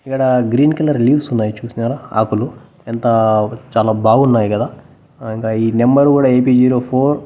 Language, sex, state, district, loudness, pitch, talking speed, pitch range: Telugu, male, Andhra Pradesh, Annamaya, -14 LUFS, 120 Hz, 155 wpm, 110-135 Hz